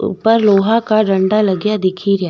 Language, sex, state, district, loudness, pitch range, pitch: Rajasthani, female, Rajasthan, Nagaur, -14 LUFS, 195-215 Hz, 200 Hz